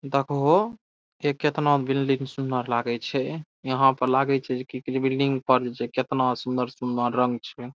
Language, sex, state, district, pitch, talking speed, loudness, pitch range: Maithili, male, Bihar, Saharsa, 130 Hz, 155 wpm, -25 LUFS, 125-140 Hz